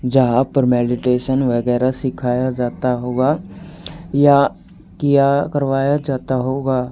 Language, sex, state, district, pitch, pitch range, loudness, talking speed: Hindi, male, Haryana, Charkhi Dadri, 130 Hz, 125-140 Hz, -17 LUFS, 105 wpm